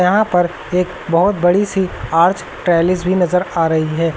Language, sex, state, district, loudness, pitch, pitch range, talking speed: Hindi, male, Uttar Pradesh, Lucknow, -16 LUFS, 180 Hz, 165-185 Hz, 185 wpm